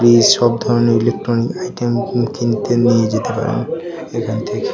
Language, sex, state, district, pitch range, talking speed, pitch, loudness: Bengali, male, Tripura, West Tripura, 115-120 Hz, 140 wpm, 120 Hz, -16 LUFS